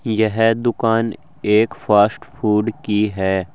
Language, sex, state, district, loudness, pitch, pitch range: Hindi, male, Uttar Pradesh, Saharanpur, -18 LUFS, 110 Hz, 105-115 Hz